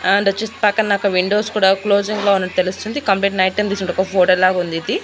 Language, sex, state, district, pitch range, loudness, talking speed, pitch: Telugu, female, Andhra Pradesh, Annamaya, 185-210 Hz, -17 LUFS, 225 wpm, 195 Hz